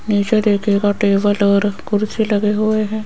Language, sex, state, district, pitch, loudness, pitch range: Hindi, female, Rajasthan, Jaipur, 205 Hz, -16 LUFS, 205-215 Hz